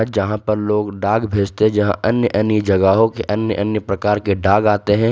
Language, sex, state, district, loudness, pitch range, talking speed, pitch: Hindi, male, Jharkhand, Ranchi, -17 LUFS, 100-110 Hz, 210 wpm, 105 Hz